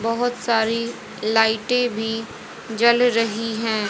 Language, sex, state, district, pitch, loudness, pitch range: Hindi, female, Haryana, Jhajjar, 225 Hz, -21 LUFS, 220-235 Hz